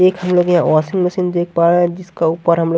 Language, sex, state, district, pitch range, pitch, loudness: Hindi, male, Haryana, Jhajjar, 170-180 Hz, 175 Hz, -15 LUFS